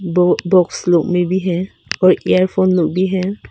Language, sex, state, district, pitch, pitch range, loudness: Hindi, female, Arunachal Pradesh, Papum Pare, 185 Hz, 175-185 Hz, -15 LUFS